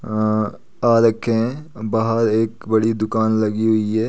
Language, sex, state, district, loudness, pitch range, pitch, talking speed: Hindi, male, Uttar Pradesh, Etah, -19 LUFS, 110-115 Hz, 110 Hz, 160 wpm